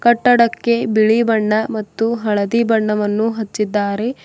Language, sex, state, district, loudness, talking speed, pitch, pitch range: Kannada, female, Karnataka, Bidar, -16 LUFS, 100 wpm, 220 Hz, 210-235 Hz